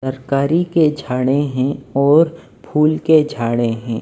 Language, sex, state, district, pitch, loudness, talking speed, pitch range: Hindi, male, Maharashtra, Mumbai Suburban, 140 Hz, -16 LUFS, 135 wpm, 130-155 Hz